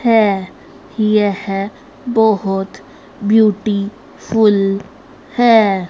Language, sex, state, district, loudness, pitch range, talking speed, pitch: Hindi, female, Haryana, Rohtak, -15 LUFS, 195-220 Hz, 60 wpm, 210 Hz